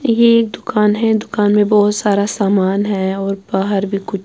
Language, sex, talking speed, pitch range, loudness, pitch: Urdu, female, 200 wpm, 195-215 Hz, -15 LUFS, 205 Hz